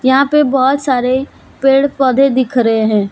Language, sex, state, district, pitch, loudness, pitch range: Hindi, female, Jharkhand, Deoghar, 260 Hz, -13 LUFS, 255-275 Hz